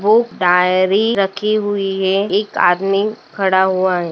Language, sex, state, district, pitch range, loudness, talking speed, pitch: Hindi, female, Andhra Pradesh, Anantapur, 185-205 Hz, -15 LUFS, 145 wpm, 195 Hz